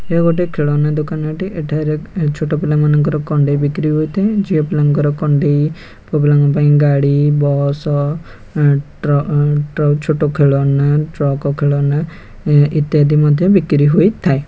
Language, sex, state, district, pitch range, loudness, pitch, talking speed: Odia, male, Odisha, Khordha, 145-155 Hz, -14 LUFS, 150 Hz, 115 wpm